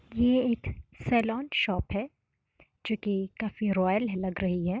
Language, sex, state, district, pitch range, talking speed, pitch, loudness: Hindi, female, Uttar Pradesh, Varanasi, 190-235 Hz, 150 wpm, 215 Hz, -29 LUFS